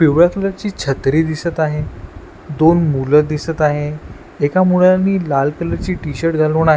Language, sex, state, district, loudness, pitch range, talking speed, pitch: Marathi, male, Maharashtra, Washim, -16 LUFS, 150-175 Hz, 150 wpm, 155 Hz